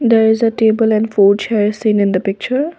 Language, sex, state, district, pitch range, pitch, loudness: English, female, Assam, Kamrup Metropolitan, 205-230 Hz, 220 Hz, -14 LUFS